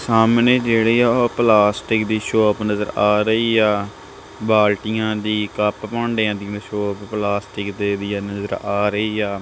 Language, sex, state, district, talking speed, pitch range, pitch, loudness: Punjabi, male, Punjab, Kapurthala, 160 wpm, 105-110 Hz, 105 Hz, -19 LUFS